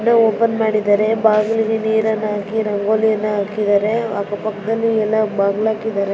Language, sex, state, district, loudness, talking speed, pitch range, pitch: Kannada, female, Karnataka, Dharwad, -17 LUFS, 115 wpm, 205-220 Hz, 215 Hz